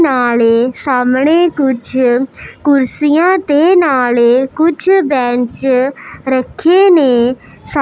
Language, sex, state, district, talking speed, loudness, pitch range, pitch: Punjabi, female, Punjab, Pathankot, 75 wpm, -12 LUFS, 250-320 Hz, 265 Hz